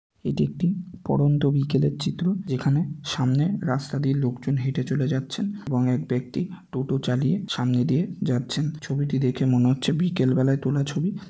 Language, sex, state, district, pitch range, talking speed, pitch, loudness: Bengali, male, West Bengal, North 24 Parganas, 130-170 Hz, 150 wpm, 140 Hz, -24 LUFS